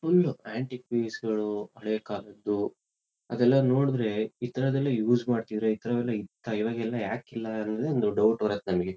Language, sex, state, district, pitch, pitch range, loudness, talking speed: Kannada, male, Karnataka, Shimoga, 115 Hz, 105-120 Hz, -29 LUFS, 135 wpm